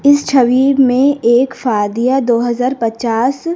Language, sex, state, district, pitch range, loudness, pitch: Hindi, female, Madhya Pradesh, Dhar, 235-275 Hz, -13 LUFS, 255 Hz